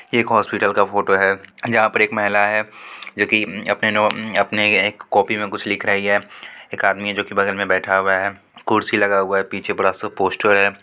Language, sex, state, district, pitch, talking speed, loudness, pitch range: Hindi, female, Bihar, Supaul, 100 Hz, 210 wpm, -18 LUFS, 100-105 Hz